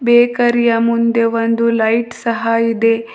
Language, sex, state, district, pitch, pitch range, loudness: Kannada, female, Karnataka, Bidar, 230 Hz, 230-235 Hz, -14 LUFS